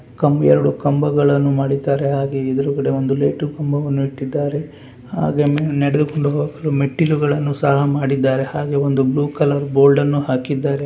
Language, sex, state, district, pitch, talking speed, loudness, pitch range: Kannada, male, Karnataka, Gulbarga, 140 Hz, 125 wpm, -17 LUFS, 135-145 Hz